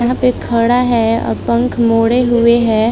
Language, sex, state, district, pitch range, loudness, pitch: Hindi, female, Uttar Pradesh, Muzaffarnagar, 230-245 Hz, -13 LUFS, 235 Hz